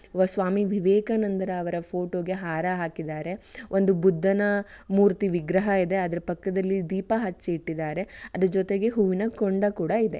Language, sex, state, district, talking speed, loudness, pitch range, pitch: Kannada, female, Karnataka, Shimoga, 140 wpm, -26 LUFS, 180-200 Hz, 190 Hz